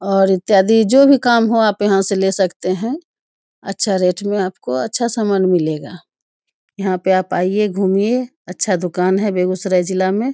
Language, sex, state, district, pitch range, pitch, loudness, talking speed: Hindi, female, Bihar, Begusarai, 185-220 Hz, 195 Hz, -16 LUFS, 180 wpm